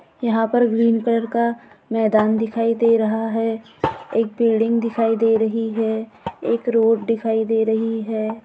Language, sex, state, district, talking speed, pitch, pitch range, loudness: Hindi, female, Maharashtra, Pune, 155 wpm, 225 Hz, 225-230 Hz, -20 LUFS